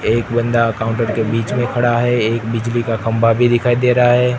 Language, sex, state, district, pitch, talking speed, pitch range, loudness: Hindi, male, Gujarat, Gandhinagar, 120 Hz, 235 wpm, 115-120 Hz, -16 LUFS